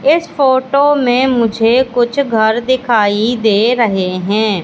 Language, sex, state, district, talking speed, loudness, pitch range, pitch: Hindi, female, Madhya Pradesh, Katni, 130 wpm, -13 LUFS, 220-260 Hz, 240 Hz